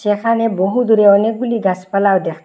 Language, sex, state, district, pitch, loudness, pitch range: Bengali, female, Assam, Hailakandi, 205 Hz, -14 LUFS, 190-230 Hz